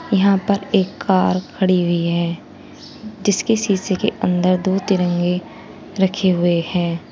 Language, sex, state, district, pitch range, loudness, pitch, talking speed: Hindi, female, Uttar Pradesh, Saharanpur, 180-200 Hz, -18 LUFS, 190 Hz, 135 wpm